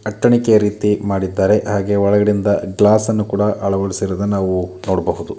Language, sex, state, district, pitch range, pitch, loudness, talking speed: Kannada, male, Karnataka, Dakshina Kannada, 100-105 Hz, 100 Hz, -16 LUFS, 120 wpm